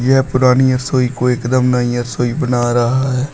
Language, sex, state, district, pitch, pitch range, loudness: Hindi, male, Uttar Pradesh, Shamli, 125 Hz, 120-130 Hz, -15 LUFS